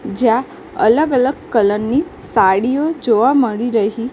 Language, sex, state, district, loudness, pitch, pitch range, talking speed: Gujarati, female, Gujarat, Gandhinagar, -15 LUFS, 245 Hz, 225-290 Hz, 130 wpm